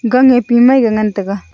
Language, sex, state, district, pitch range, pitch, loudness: Wancho, female, Arunachal Pradesh, Longding, 215-250 Hz, 240 Hz, -11 LUFS